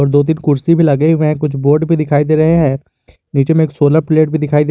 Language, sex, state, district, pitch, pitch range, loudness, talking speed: Hindi, male, Jharkhand, Garhwa, 155 Hz, 145-160 Hz, -13 LUFS, 295 wpm